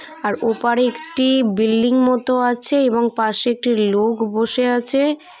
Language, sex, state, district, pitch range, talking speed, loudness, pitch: Bengali, female, West Bengal, Purulia, 225-255 Hz, 135 wpm, -17 LUFS, 240 Hz